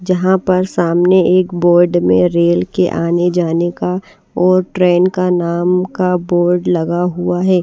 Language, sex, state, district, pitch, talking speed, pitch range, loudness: Hindi, female, Bihar, Kaimur, 175 Hz, 155 wpm, 175-185 Hz, -14 LUFS